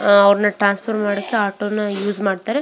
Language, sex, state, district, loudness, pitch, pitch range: Kannada, female, Karnataka, Belgaum, -18 LUFS, 205 Hz, 200-210 Hz